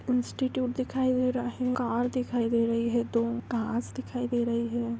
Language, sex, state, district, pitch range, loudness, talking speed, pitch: Hindi, female, Andhra Pradesh, Visakhapatnam, 235-255 Hz, -29 LUFS, 180 wpm, 240 Hz